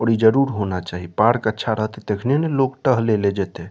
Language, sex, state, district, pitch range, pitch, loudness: Maithili, male, Bihar, Saharsa, 100-125 Hz, 110 Hz, -20 LUFS